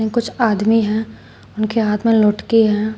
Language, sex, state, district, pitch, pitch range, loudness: Hindi, female, Uttar Pradesh, Shamli, 220 Hz, 215-225 Hz, -16 LUFS